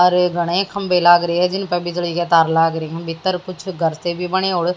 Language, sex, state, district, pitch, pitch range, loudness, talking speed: Hindi, female, Haryana, Jhajjar, 175 Hz, 170-180 Hz, -18 LUFS, 275 wpm